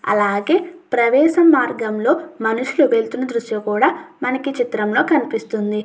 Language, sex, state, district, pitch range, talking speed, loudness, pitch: Telugu, female, Andhra Pradesh, Chittoor, 220-320 Hz, 115 wpm, -18 LUFS, 250 Hz